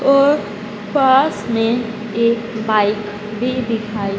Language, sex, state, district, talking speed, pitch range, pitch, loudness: Hindi, female, Madhya Pradesh, Dhar, 85 wpm, 210-245 Hz, 225 Hz, -17 LUFS